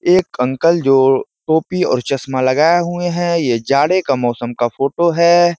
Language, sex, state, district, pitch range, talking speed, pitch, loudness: Hindi, male, Uttar Pradesh, Ghazipur, 130-175 Hz, 170 wpm, 160 Hz, -15 LUFS